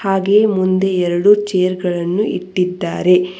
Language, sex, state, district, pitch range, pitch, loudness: Kannada, female, Karnataka, Bangalore, 180-195 Hz, 185 Hz, -15 LUFS